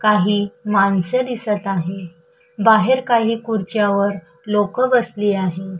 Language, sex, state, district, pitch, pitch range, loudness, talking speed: Marathi, female, Maharashtra, Chandrapur, 205 Hz, 195-230 Hz, -18 LUFS, 115 wpm